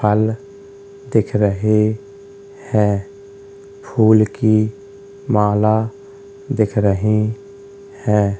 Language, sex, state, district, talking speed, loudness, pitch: Hindi, male, Uttar Pradesh, Hamirpur, 70 wpm, -17 LUFS, 110 Hz